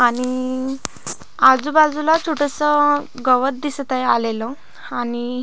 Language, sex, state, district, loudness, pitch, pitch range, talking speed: Marathi, female, Maharashtra, Pune, -18 LUFS, 265 Hz, 250-295 Hz, 90 wpm